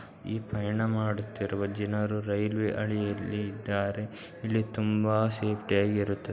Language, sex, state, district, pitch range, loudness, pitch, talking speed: Kannada, male, Karnataka, Dakshina Kannada, 105-110 Hz, -30 LUFS, 105 Hz, 105 wpm